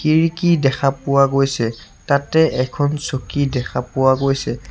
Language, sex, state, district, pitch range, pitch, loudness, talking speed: Assamese, male, Assam, Sonitpur, 130-145 Hz, 135 Hz, -18 LUFS, 125 wpm